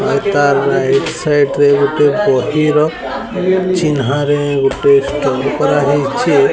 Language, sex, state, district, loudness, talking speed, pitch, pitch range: Odia, male, Odisha, Sambalpur, -13 LUFS, 90 wpm, 145 Hz, 140-155 Hz